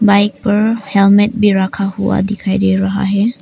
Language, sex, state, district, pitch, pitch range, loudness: Hindi, female, Arunachal Pradesh, Papum Pare, 200 Hz, 195-210 Hz, -13 LUFS